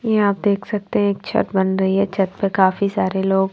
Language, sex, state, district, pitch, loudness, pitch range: Hindi, female, Haryana, Charkhi Dadri, 195 Hz, -19 LUFS, 190-205 Hz